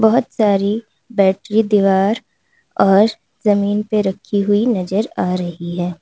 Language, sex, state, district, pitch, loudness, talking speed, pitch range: Hindi, female, Uttar Pradesh, Lalitpur, 205 Hz, -17 LUFS, 130 wpm, 195-215 Hz